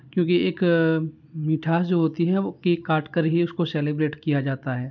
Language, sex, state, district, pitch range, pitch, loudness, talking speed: Hindi, male, Bihar, Muzaffarpur, 150-170 Hz, 160 Hz, -23 LUFS, 195 wpm